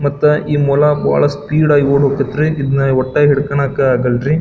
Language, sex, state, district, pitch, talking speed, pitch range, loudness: Kannada, male, Karnataka, Belgaum, 145 Hz, 175 wpm, 140-150 Hz, -14 LUFS